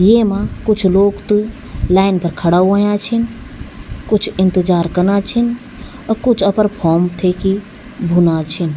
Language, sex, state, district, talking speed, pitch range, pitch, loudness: Garhwali, female, Uttarakhand, Tehri Garhwal, 150 wpm, 180-220 Hz, 200 Hz, -15 LUFS